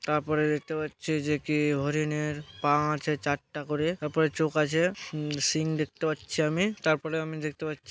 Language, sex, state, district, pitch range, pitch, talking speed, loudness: Bengali, male, West Bengal, Malda, 150-155 Hz, 155 Hz, 160 wpm, -29 LUFS